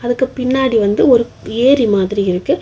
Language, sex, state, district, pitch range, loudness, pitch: Tamil, female, Tamil Nadu, Kanyakumari, 200-255 Hz, -14 LUFS, 235 Hz